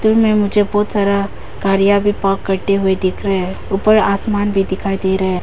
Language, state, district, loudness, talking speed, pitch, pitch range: Hindi, Arunachal Pradesh, Papum Pare, -15 LUFS, 210 wpm, 200 Hz, 195-205 Hz